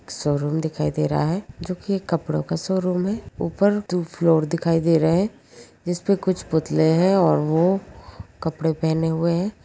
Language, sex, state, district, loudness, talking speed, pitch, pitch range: Magahi, female, Bihar, Gaya, -22 LUFS, 180 wpm, 165 Hz, 155-180 Hz